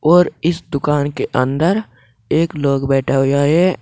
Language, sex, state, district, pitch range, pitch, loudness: Hindi, male, Uttar Pradesh, Saharanpur, 135-165 Hz, 145 Hz, -16 LUFS